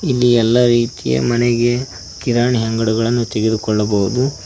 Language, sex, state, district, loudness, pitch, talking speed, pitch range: Kannada, male, Karnataka, Koppal, -16 LUFS, 120 Hz, 95 wpm, 110-120 Hz